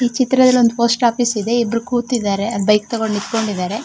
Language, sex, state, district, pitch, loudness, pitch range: Kannada, female, Karnataka, Shimoga, 230 Hz, -16 LUFS, 210-245 Hz